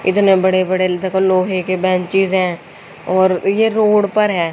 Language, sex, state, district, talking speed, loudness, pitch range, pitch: Hindi, female, Haryana, Jhajjar, 170 wpm, -15 LUFS, 185-195 Hz, 185 Hz